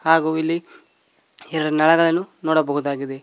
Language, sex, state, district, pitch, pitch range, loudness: Kannada, male, Karnataka, Koppal, 160 Hz, 150-165 Hz, -20 LUFS